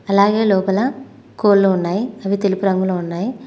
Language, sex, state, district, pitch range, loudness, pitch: Telugu, female, Telangana, Mahabubabad, 190-220 Hz, -17 LUFS, 200 Hz